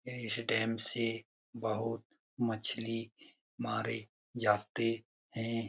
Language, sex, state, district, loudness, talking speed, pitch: Hindi, male, Bihar, Lakhisarai, -35 LUFS, 95 wpm, 115 Hz